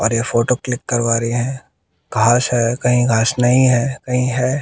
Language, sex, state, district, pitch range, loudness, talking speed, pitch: Hindi, male, Bihar, West Champaran, 115-125 Hz, -16 LUFS, 195 wpm, 125 Hz